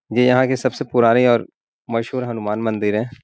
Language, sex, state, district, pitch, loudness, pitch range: Hindi, male, Bihar, Gaya, 120 Hz, -18 LUFS, 110-125 Hz